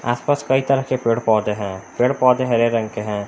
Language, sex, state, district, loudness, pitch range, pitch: Hindi, male, Jharkhand, Palamu, -19 LUFS, 110-130 Hz, 120 Hz